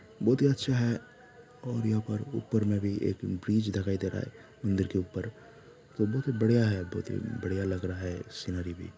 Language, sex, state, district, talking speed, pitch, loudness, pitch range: Hindi, male, Jharkhand, Jamtara, 205 wpm, 105 Hz, -31 LUFS, 95-115 Hz